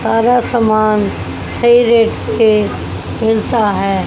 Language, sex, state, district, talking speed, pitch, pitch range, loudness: Hindi, female, Haryana, Jhajjar, 105 wpm, 225 Hz, 215-235 Hz, -13 LUFS